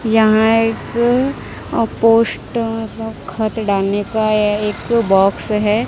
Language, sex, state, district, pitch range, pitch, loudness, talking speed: Hindi, female, Chhattisgarh, Raipur, 210-225 Hz, 220 Hz, -16 LUFS, 90 wpm